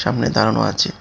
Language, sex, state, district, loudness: Bengali, male, Tripura, West Tripura, -18 LUFS